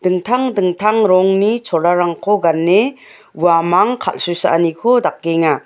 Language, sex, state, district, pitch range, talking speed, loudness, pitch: Garo, female, Meghalaya, West Garo Hills, 170-215 Hz, 85 wpm, -15 LUFS, 185 Hz